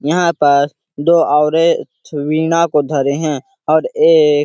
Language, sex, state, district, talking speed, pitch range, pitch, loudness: Hindi, male, Chhattisgarh, Sarguja, 150 wpm, 145-170 Hz, 160 Hz, -14 LUFS